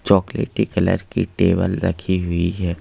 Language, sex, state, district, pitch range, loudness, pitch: Hindi, male, Madhya Pradesh, Bhopal, 85-95 Hz, -20 LUFS, 90 Hz